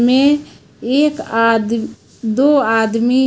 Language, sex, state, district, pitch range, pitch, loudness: Hindi, female, Chhattisgarh, Raipur, 230-280 Hz, 245 Hz, -15 LUFS